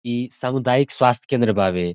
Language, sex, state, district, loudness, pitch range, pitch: Bhojpuri, male, Bihar, Saran, -20 LUFS, 110-125 Hz, 125 Hz